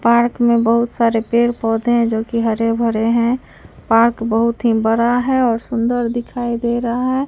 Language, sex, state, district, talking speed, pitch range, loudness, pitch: Hindi, female, Bihar, Katihar, 190 wpm, 230-240 Hz, -16 LUFS, 235 Hz